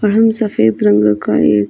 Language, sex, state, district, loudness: Hindi, female, Chhattisgarh, Sarguja, -13 LUFS